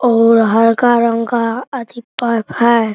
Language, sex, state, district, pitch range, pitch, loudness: Maithili, male, Bihar, Araria, 230-240 Hz, 230 Hz, -13 LUFS